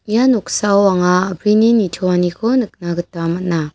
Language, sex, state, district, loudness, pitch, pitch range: Garo, female, Meghalaya, West Garo Hills, -15 LUFS, 185 Hz, 175-215 Hz